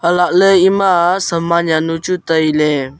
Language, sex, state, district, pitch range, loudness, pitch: Wancho, male, Arunachal Pradesh, Longding, 160-185 Hz, -13 LUFS, 170 Hz